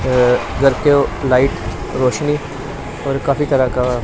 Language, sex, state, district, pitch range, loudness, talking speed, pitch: Hindi, male, Punjab, Pathankot, 125-140 Hz, -16 LUFS, 120 wpm, 135 Hz